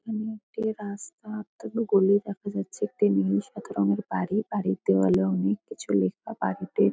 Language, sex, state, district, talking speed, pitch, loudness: Bengali, female, West Bengal, Kolkata, 145 wpm, 200 Hz, -27 LUFS